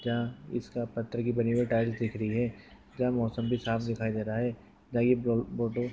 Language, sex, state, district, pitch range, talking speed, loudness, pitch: Hindi, male, Maharashtra, Sindhudurg, 115-120 Hz, 210 wpm, -31 LUFS, 115 Hz